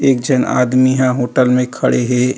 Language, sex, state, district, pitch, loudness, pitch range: Chhattisgarhi, male, Chhattisgarh, Rajnandgaon, 125 Hz, -14 LUFS, 125-130 Hz